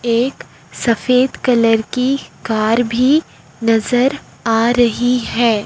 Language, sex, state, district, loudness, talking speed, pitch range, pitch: Hindi, male, Chhattisgarh, Raipur, -16 LUFS, 105 wpm, 225-250 Hz, 240 Hz